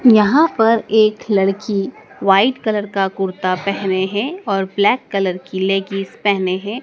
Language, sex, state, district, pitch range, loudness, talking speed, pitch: Hindi, female, Madhya Pradesh, Dhar, 195-215 Hz, -17 LUFS, 150 wpm, 200 Hz